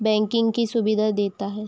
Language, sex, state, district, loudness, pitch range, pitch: Hindi, female, Chhattisgarh, Raigarh, -22 LUFS, 210-225 Hz, 215 Hz